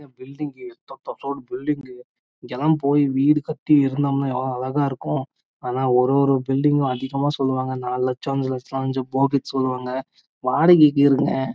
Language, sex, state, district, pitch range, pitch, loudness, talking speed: Tamil, male, Karnataka, Chamarajanagar, 130-145 Hz, 135 Hz, -21 LUFS, 135 wpm